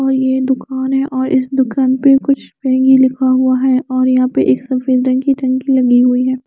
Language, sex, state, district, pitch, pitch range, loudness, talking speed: Hindi, female, Chandigarh, Chandigarh, 260 Hz, 255-265 Hz, -13 LUFS, 185 wpm